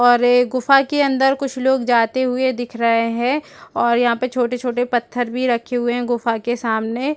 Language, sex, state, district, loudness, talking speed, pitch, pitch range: Hindi, female, Chhattisgarh, Rajnandgaon, -18 LUFS, 195 wpm, 245 Hz, 240-260 Hz